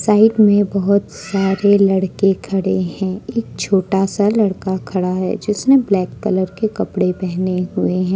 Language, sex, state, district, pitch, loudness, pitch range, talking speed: Hindi, female, Jharkhand, Ranchi, 195 Hz, -17 LUFS, 185-205 Hz, 155 wpm